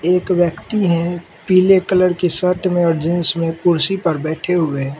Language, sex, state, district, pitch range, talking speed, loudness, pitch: Hindi, male, Mizoram, Aizawl, 165-180 Hz, 180 wpm, -16 LUFS, 175 Hz